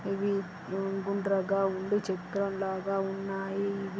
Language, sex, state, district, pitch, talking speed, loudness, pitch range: Telugu, female, Andhra Pradesh, Srikakulam, 195 Hz, 105 wpm, -32 LUFS, 195-200 Hz